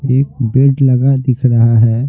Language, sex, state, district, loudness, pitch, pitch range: Hindi, male, Bihar, Patna, -12 LUFS, 130 Hz, 120-135 Hz